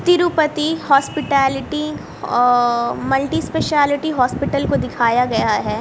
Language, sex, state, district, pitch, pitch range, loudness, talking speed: Hindi, female, Haryana, Rohtak, 275 Hz, 245-300 Hz, -17 LUFS, 95 wpm